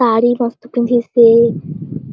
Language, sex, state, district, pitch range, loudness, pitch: Chhattisgarhi, female, Chhattisgarh, Jashpur, 225-240 Hz, -13 LUFS, 235 Hz